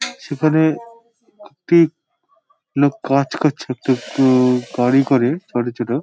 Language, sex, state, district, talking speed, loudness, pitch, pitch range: Bengali, male, West Bengal, Dakshin Dinajpur, 100 wpm, -17 LUFS, 140 Hz, 130-170 Hz